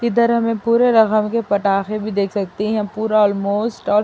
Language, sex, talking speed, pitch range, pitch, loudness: Urdu, female, 195 wpm, 205-230 Hz, 215 Hz, -17 LUFS